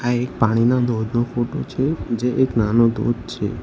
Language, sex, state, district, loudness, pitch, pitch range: Gujarati, male, Gujarat, Valsad, -20 LUFS, 120 Hz, 115-120 Hz